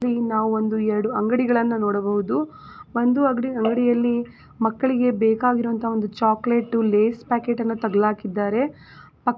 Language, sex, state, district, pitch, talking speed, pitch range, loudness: Kannada, female, Karnataka, Gulbarga, 230 Hz, 100 wpm, 220-245 Hz, -22 LUFS